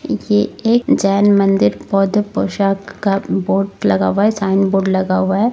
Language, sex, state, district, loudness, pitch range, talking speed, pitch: Hindi, female, Bihar, Gopalganj, -15 LUFS, 190-200 Hz, 175 wpm, 195 Hz